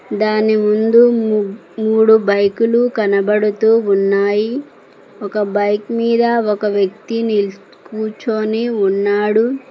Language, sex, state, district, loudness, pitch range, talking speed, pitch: Telugu, female, Telangana, Mahabubabad, -15 LUFS, 205-230 Hz, 85 wpm, 215 Hz